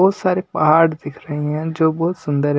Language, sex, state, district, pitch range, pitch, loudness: Hindi, male, Delhi, New Delhi, 150-175 Hz, 160 Hz, -18 LUFS